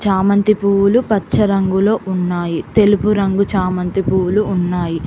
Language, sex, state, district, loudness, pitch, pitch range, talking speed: Telugu, female, Telangana, Hyderabad, -15 LUFS, 195 Hz, 180-205 Hz, 120 wpm